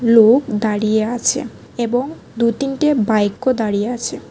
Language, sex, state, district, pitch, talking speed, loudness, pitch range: Bengali, female, Tripura, West Tripura, 235 Hz, 125 wpm, -17 LUFS, 220-255 Hz